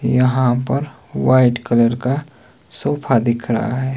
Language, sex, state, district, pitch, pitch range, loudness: Hindi, male, Himachal Pradesh, Shimla, 125 Hz, 120-130 Hz, -17 LUFS